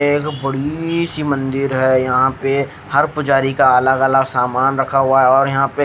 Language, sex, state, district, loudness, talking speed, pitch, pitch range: Hindi, female, Odisha, Khordha, -15 LUFS, 195 wpm, 135 Hz, 130-145 Hz